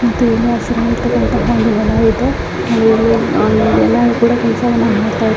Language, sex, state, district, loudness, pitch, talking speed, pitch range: Kannada, female, Karnataka, Mysore, -13 LUFS, 230 Hz, 125 wpm, 225-240 Hz